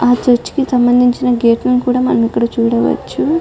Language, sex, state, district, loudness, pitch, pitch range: Telugu, female, Andhra Pradesh, Chittoor, -13 LUFS, 245 Hz, 235-250 Hz